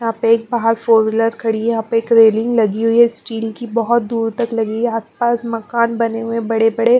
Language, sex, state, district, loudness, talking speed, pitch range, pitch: Hindi, female, Bihar, Patna, -16 LUFS, 240 wpm, 225-235 Hz, 230 Hz